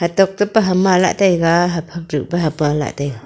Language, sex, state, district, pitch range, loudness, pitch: Wancho, female, Arunachal Pradesh, Longding, 150-190 Hz, -16 LUFS, 170 Hz